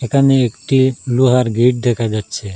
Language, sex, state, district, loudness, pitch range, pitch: Bengali, male, Assam, Hailakandi, -15 LUFS, 115-130 Hz, 125 Hz